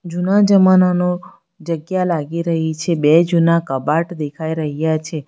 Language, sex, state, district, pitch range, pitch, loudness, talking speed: Gujarati, female, Gujarat, Valsad, 160-180 Hz, 170 Hz, -17 LUFS, 135 wpm